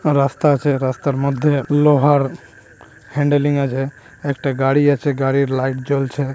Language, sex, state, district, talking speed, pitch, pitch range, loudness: Bengali, male, West Bengal, Malda, 130 wpm, 140 Hz, 135-145 Hz, -17 LUFS